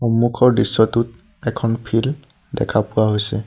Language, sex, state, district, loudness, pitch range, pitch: Assamese, male, Assam, Sonitpur, -18 LUFS, 110-125 Hz, 115 Hz